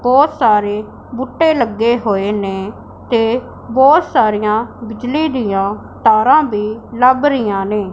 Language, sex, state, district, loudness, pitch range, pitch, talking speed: Punjabi, female, Punjab, Pathankot, -14 LUFS, 210-265 Hz, 230 Hz, 120 wpm